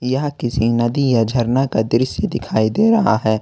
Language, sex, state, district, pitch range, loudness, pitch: Hindi, male, Jharkhand, Ranchi, 110-135 Hz, -17 LUFS, 120 Hz